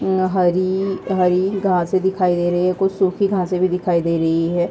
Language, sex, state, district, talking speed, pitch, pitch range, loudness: Hindi, female, Uttar Pradesh, Hamirpur, 205 wpm, 185 Hz, 175-190 Hz, -18 LUFS